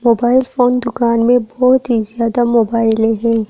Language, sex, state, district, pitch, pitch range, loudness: Hindi, female, Delhi, New Delhi, 235 Hz, 230-245 Hz, -14 LUFS